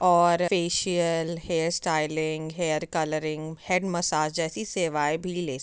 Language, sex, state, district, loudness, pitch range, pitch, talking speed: Hindi, female, Uttar Pradesh, Jyotiba Phule Nagar, -26 LUFS, 155-175 Hz, 165 Hz, 140 wpm